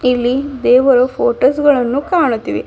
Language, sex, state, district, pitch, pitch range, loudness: Kannada, female, Karnataka, Bidar, 260 Hz, 245-290 Hz, -13 LUFS